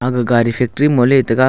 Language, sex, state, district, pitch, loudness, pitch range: Wancho, male, Arunachal Pradesh, Longding, 125 Hz, -14 LUFS, 120-130 Hz